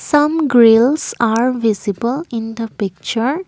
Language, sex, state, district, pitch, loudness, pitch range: English, female, Assam, Kamrup Metropolitan, 235 Hz, -16 LUFS, 225-280 Hz